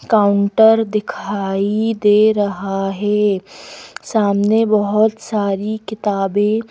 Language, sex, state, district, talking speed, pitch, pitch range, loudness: Hindi, female, Madhya Pradesh, Bhopal, 80 wpm, 210 Hz, 200-215 Hz, -16 LUFS